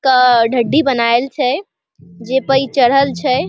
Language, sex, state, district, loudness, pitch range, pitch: Maithili, female, Bihar, Vaishali, -14 LUFS, 240-275 Hz, 255 Hz